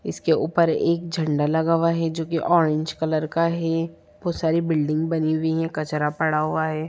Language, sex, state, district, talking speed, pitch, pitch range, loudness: Hindi, female, Bihar, Sitamarhi, 215 wpm, 160 Hz, 155-165 Hz, -22 LUFS